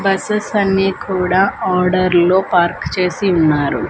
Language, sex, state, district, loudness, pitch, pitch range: Telugu, female, Andhra Pradesh, Manyam, -15 LUFS, 185 Hz, 180-195 Hz